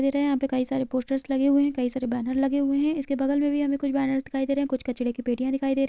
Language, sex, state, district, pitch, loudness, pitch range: Hindi, female, Uttarakhand, Uttarkashi, 270 Hz, -25 LUFS, 260-280 Hz